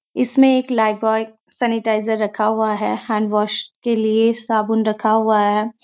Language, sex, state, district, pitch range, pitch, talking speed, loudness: Hindi, female, Uttarakhand, Uttarkashi, 215-230 Hz, 220 Hz, 145 wpm, -18 LUFS